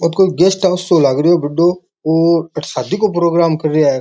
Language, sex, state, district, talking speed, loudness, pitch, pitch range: Rajasthani, male, Rajasthan, Nagaur, 255 wpm, -14 LUFS, 170 Hz, 155-180 Hz